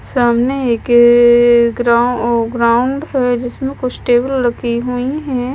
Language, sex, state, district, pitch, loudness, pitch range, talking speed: Hindi, female, Punjab, Kapurthala, 245 Hz, -13 LUFS, 240-255 Hz, 120 wpm